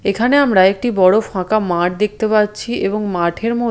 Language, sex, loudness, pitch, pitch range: Bengali, female, -15 LUFS, 210 Hz, 185-230 Hz